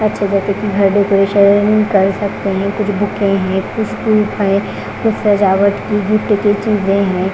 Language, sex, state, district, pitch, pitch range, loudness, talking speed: Hindi, female, Punjab, Fazilka, 200 Hz, 195-210 Hz, -14 LUFS, 140 wpm